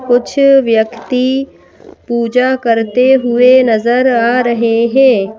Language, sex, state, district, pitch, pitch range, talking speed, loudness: Hindi, female, Madhya Pradesh, Bhopal, 245 Hz, 230-260 Hz, 100 wpm, -11 LUFS